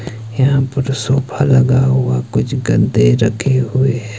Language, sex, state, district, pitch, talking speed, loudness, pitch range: Hindi, male, Himachal Pradesh, Shimla, 130 Hz, 145 wpm, -14 LUFS, 115-135 Hz